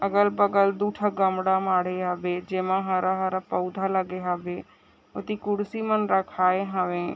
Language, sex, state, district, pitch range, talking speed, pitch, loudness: Chhattisgarhi, female, Chhattisgarh, Raigarh, 185-200 Hz, 150 wpm, 190 Hz, -25 LUFS